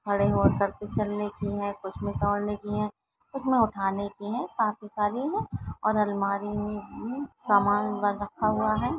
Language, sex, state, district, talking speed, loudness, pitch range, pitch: Hindi, female, Maharashtra, Dhule, 180 wpm, -28 LUFS, 205-215 Hz, 210 Hz